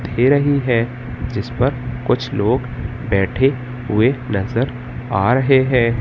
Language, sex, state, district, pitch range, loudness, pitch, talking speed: Hindi, male, Madhya Pradesh, Katni, 115-125 Hz, -18 LUFS, 125 Hz, 120 wpm